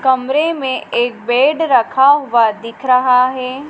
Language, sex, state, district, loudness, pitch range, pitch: Hindi, female, Madhya Pradesh, Dhar, -14 LUFS, 245-275 Hz, 260 Hz